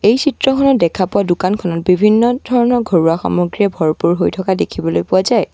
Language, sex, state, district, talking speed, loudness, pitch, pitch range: Assamese, female, Assam, Sonitpur, 165 wpm, -14 LUFS, 190 Hz, 170-240 Hz